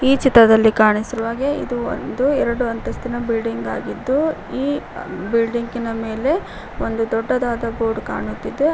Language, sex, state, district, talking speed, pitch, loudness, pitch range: Kannada, female, Karnataka, Koppal, 125 wpm, 235 Hz, -19 LUFS, 225-260 Hz